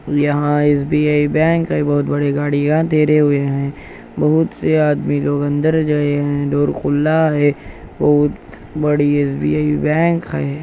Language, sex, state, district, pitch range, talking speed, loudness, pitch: Hindi, male, Andhra Pradesh, Anantapur, 145-150 Hz, 140 wpm, -16 LUFS, 145 Hz